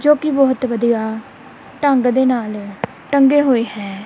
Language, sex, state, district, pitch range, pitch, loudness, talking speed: Punjabi, female, Punjab, Kapurthala, 220-280 Hz, 250 Hz, -16 LUFS, 165 wpm